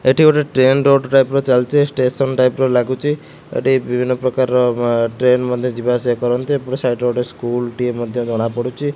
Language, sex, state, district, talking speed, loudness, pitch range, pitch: Odia, male, Odisha, Khordha, 190 wpm, -16 LUFS, 120-135 Hz, 125 Hz